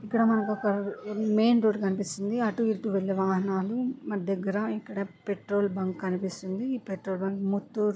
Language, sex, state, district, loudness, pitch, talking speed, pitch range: Telugu, female, Andhra Pradesh, Guntur, -29 LUFS, 200 Hz, 150 wpm, 195-215 Hz